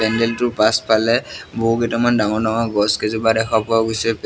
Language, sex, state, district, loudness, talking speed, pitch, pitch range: Assamese, male, Assam, Sonitpur, -18 LUFS, 155 wpm, 115 Hz, 110-115 Hz